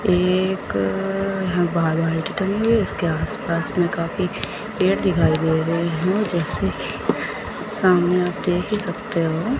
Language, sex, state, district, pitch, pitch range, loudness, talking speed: Hindi, female, Chandigarh, Chandigarh, 180 Hz, 165-195 Hz, -21 LUFS, 125 wpm